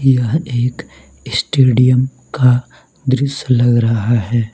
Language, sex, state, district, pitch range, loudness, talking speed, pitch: Hindi, male, Mizoram, Aizawl, 120-130 Hz, -15 LUFS, 105 wpm, 125 Hz